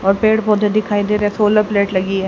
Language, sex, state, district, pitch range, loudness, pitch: Hindi, female, Haryana, Charkhi Dadri, 200-215 Hz, -15 LUFS, 210 Hz